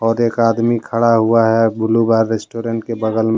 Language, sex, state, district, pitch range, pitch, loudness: Hindi, male, Jharkhand, Deoghar, 110-115 Hz, 115 Hz, -15 LUFS